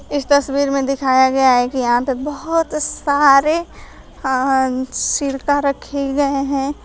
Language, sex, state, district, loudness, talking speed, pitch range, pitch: Hindi, female, Uttar Pradesh, Shamli, -17 LUFS, 140 wpm, 265-285 Hz, 275 Hz